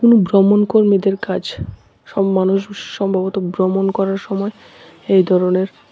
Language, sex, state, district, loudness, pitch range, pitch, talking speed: Bengali, male, Tripura, West Tripura, -16 LUFS, 185-200 Hz, 195 Hz, 120 wpm